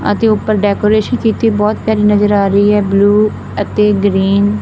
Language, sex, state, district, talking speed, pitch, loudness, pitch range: Punjabi, female, Punjab, Fazilka, 180 wpm, 210 Hz, -12 LUFS, 205-215 Hz